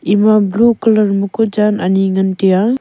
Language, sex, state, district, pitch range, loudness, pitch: Wancho, female, Arunachal Pradesh, Longding, 190-215 Hz, -13 LUFS, 205 Hz